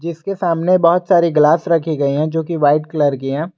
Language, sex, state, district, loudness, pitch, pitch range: Hindi, male, Jharkhand, Garhwa, -15 LUFS, 165 Hz, 150-170 Hz